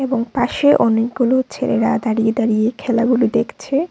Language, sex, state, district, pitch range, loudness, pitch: Bengali, female, Tripura, Unakoti, 230-260 Hz, -17 LUFS, 245 Hz